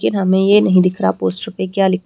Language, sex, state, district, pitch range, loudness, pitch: Hindi, female, Haryana, Rohtak, 180-195 Hz, -15 LUFS, 190 Hz